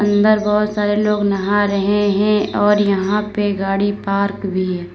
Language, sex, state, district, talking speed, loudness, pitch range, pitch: Hindi, female, Uttar Pradesh, Lalitpur, 170 wpm, -17 LUFS, 200-210 Hz, 205 Hz